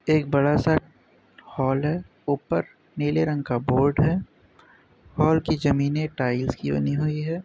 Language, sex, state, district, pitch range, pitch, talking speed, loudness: Hindi, male, Uttar Pradesh, Budaun, 135-155 Hz, 145 Hz, 155 wpm, -24 LUFS